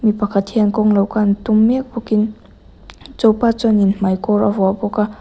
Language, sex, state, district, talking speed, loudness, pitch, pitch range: Mizo, female, Mizoram, Aizawl, 220 wpm, -16 LUFS, 210 Hz, 205-220 Hz